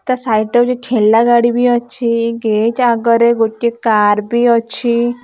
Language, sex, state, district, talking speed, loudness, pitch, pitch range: Odia, female, Odisha, Khordha, 160 wpm, -13 LUFS, 235 Hz, 225-240 Hz